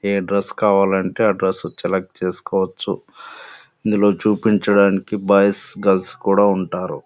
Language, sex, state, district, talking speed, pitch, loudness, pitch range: Telugu, male, Andhra Pradesh, Anantapur, 110 wpm, 100 Hz, -18 LUFS, 95-100 Hz